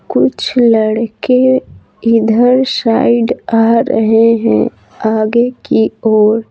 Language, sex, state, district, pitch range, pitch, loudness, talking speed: Hindi, female, Bihar, Patna, 220-240 Hz, 230 Hz, -12 LUFS, 100 wpm